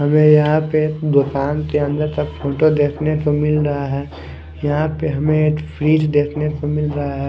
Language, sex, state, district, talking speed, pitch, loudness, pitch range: Hindi, male, Chandigarh, Chandigarh, 190 wpm, 150 Hz, -17 LUFS, 145-155 Hz